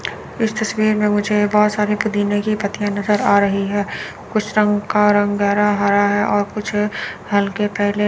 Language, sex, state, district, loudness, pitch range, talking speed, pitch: Hindi, male, Chandigarh, Chandigarh, -18 LUFS, 205-210 Hz, 180 wpm, 205 Hz